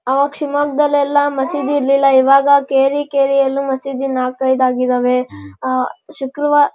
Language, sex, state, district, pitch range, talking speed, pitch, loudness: Kannada, male, Karnataka, Shimoga, 260-285 Hz, 140 wpm, 275 Hz, -15 LUFS